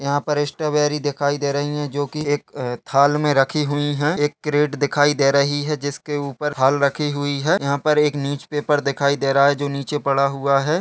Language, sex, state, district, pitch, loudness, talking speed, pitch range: Hindi, male, Chhattisgarh, Bastar, 145 Hz, -20 LUFS, 230 wpm, 140-150 Hz